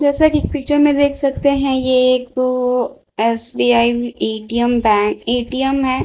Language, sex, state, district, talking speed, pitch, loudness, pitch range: Hindi, female, Bihar, Patna, 150 wpm, 255 Hz, -16 LUFS, 240-275 Hz